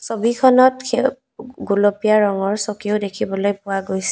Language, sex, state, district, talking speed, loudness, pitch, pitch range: Assamese, female, Assam, Kamrup Metropolitan, 115 wpm, -18 LUFS, 210 Hz, 200-250 Hz